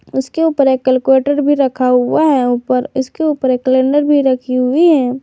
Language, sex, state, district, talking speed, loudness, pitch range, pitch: Hindi, female, Jharkhand, Garhwa, 195 wpm, -13 LUFS, 255-290 Hz, 265 Hz